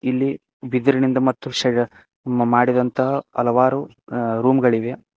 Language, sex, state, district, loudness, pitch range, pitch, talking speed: Kannada, male, Karnataka, Koppal, -20 LUFS, 120-130 Hz, 125 Hz, 105 wpm